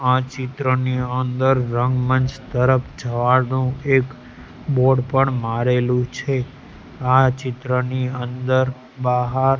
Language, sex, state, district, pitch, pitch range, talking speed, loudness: Gujarati, male, Gujarat, Gandhinagar, 130 Hz, 125-130 Hz, 95 wpm, -20 LUFS